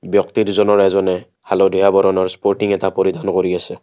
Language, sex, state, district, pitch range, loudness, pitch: Assamese, male, Assam, Kamrup Metropolitan, 95-100 Hz, -16 LUFS, 95 Hz